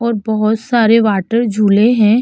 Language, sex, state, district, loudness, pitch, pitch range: Hindi, female, Uttar Pradesh, Hamirpur, -13 LUFS, 220 Hz, 215-235 Hz